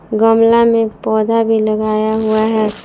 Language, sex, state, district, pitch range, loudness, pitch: Hindi, female, Jharkhand, Palamu, 215-225 Hz, -13 LUFS, 220 Hz